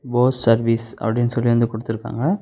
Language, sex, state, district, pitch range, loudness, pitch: Tamil, male, Tamil Nadu, Namakkal, 115-120 Hz, -17 LUFS, 115 Hz